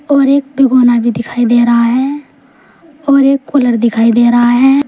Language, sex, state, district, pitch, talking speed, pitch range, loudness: Hindi, female, Uttar Pradesh, Saharanpur, 265 Hz, 185 wpm, 240-280 Hz, -10 LUFS